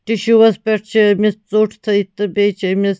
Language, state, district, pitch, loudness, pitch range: Kashmiri, Punjab, Kapurthala, 210 Hz, -15 LUFS, 205-220 Hz